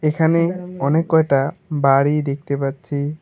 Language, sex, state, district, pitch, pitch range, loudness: Bengali, male, West Bengal, Alipurduar, 150 Hz, 140-160 Hz, -19 LUFS